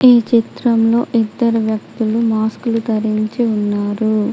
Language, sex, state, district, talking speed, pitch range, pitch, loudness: Telugu, female, Telangana, Adilabad, 110 wpm, 215-235 Hz, 225 Hz, -16 LUFS